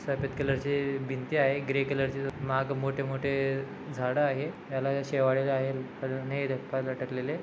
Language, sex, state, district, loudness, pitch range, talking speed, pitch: Marathi, male, Maharashtra, Dhule, -30 LUFS, 135-140 Hz, 135 wpm, 135 Hz